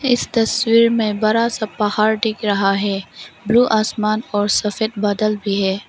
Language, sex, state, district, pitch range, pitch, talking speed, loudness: Hindi, female, Arunachal Pradesh, Longding, 205-225 Hz, 215 Hz, 165 wpm, -17 LUFS